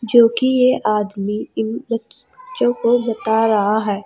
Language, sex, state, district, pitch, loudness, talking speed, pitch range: Hindi, female, Uttar Pradesh, Saharanpur, 230 Hz, -18 LUFS, 150 wpm, 215-245 Hz